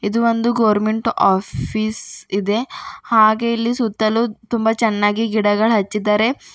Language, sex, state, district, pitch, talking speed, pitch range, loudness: Kannada, female, Karnataka, Bidar, 220 Hz, 110 wpm, 210-230 Hz, -18 LUFS